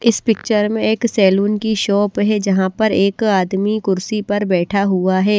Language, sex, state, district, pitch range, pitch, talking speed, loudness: Hindi, female, Bihar, West Champaran, 195-215 Hz, 205 Hz, 190 wpm, -16 LUFS